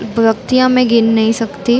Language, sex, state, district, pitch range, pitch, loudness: Hindi, female, Chhattisgarh, Bilaspur, 225-245 Hz, 230 Hz, -13 LUFS